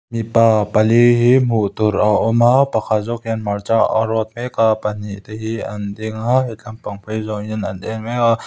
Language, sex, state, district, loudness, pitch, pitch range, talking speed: Mizo, male, Mizoram, Aizawl, -17 LUFS, 110 Hz, 105-115 Hz, 220 wpm